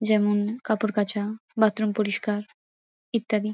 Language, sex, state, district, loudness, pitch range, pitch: Bengali, female, West Bengal, Kolkata, -25 LUFS, 210-220 Hz, 215 Hz